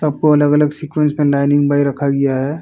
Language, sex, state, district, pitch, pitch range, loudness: Hindi, male, Uttar Pradesh, Varanasi, 145 Hz, 140-150 Hz, -15 LUFS